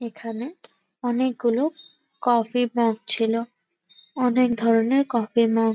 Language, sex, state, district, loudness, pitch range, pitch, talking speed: Bengali, female, West Bengal, Purulia, -23 LUFS, 230-255 Hz, 240 Hz, 105 wpm